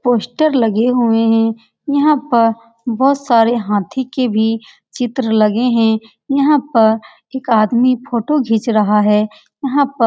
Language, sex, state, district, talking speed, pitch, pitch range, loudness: Hindi, female, Bihar, Saran, 150 wpm, 235 Hz, 225-265 Hz, -15 LUFS